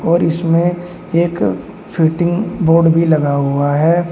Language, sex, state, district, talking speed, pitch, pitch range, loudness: Hindi, male, Uttar Pradesh, Shamli, 130 wpm, 165 Hz, 160-175 Hz, -14 LUFS